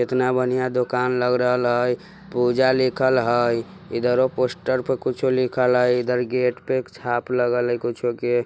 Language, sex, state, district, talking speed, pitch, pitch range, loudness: Bajjika, male, Bihar, Vaishali, 170 wpm, 125 Hz, 120-130 Hz, -21 LUFS